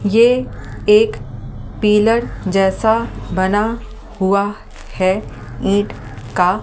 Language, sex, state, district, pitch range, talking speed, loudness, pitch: Hindi, female, Delhi, New Delhi, 185-215 Hz, 80 wpm, -16 LUFS, 200 Hz